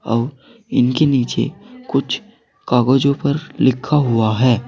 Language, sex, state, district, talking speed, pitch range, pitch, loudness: Hindi, male, Uttar Pradesh, Saharanpur, 115 wpm, 125-145 Hz, 135 Hz, -17 LUFS